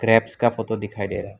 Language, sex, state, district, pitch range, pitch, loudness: Hindi, male, Assam, Kamrup Metropolitan, 105-115 Hz, 115 Hz, -23 LUFS